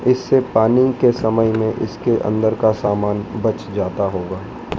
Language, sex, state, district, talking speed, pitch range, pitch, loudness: Hindi, male, Madhya Pradesh, Dhar, 150 wpm, 105-120 Hz, 110 Hz, -18 LUFS